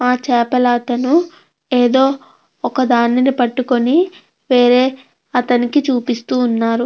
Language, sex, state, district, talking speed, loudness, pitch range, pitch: Telugu, female, Andhra Pradesh, Krishna, 70 wpm, -15 LUFS, 245-265 Hz, 250 Hz